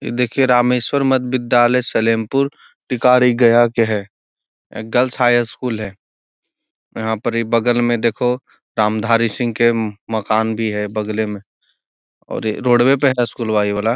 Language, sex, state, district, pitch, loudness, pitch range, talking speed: Magahi, male, Bihar, Gaya, 120 Hz, -17 LUFS, 110-125 Hz, 155 wpm